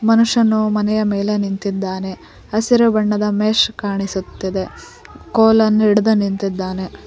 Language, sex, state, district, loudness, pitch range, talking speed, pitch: Kannada, female, Karnataka, Koppal, -17 LUFS, 195-220 Hz, 95 wpm, 210 Hz